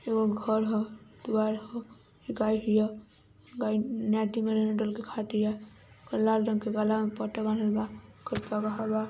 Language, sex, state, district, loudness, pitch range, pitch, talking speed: Hindi, female, Uttar Pradesh, Ghazipur, -30 LUFS, 215-220 Hz, 215 Hz, 145 wpm